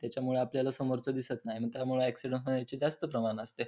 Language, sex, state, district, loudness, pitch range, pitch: Marathi, male, Maharashtra, Pune, -34 LUFS, 120-130 Hz, 130 Hz